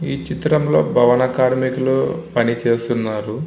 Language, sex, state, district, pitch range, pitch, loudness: Telugu, male, Andhra Pradesh, Visakhapatnam, 120-150 Hz, 130 Hz, -18 LUFS